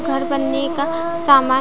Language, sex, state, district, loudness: Hindi, female, Jharkhand, Jamtara, -18 LUFS